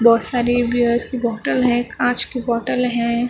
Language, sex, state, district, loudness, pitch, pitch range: Hindi, female, Maharashtra, Gondia, -18 LUFS, 240 Hz, 235-250 Hz